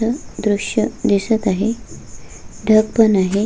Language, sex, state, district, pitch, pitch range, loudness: Marathi, female, Maharashtra, Solapur, 215 Hz, 200-225 Hz, -17 LUFS